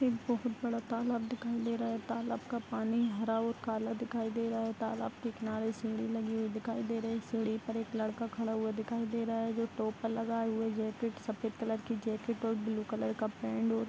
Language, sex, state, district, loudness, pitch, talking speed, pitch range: Hindi, female, Bihar, Vaishali, -36 LUFS, 225 Hz, 235 wpm, 220-230 Hz